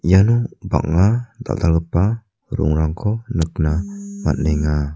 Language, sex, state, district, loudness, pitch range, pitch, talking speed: Garo, male, Meghalaya, South Garo Hills, -19 LUFS, 75-105 Hz, 90 Hz, 75 wpm